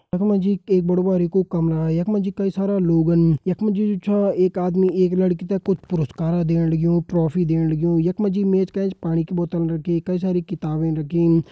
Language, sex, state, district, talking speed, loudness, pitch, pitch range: Hindi, male, Uttarakhand, Uttarkashi, 230 wpm, -20 LUFS, 180 Hz, 165-190 Hz